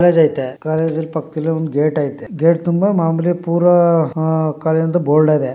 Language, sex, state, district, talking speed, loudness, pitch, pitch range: Kannada, male, Karnataka, Mysore, 160 wpm, -16 LUFS, 160 Hz, 155-170 Hz